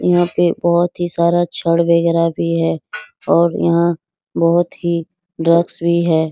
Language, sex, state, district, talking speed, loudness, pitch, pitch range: Hindi, female, Bihar, Araria, 160 wpm, -16 LUFS, 170 Hz, 165-175 Hz